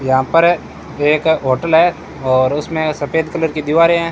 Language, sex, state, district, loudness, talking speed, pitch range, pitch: Hindi, male, Rajasthan, Bikaner, -15 LUFS, 175 wpm, 145-165 Hz, 160 Hz